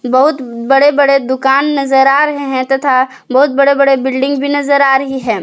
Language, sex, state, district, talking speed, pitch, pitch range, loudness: Hindi, female, Jharkhand, Palamu, 200 wpm, 270 Hz, 260-280 Hz, -11 LUFS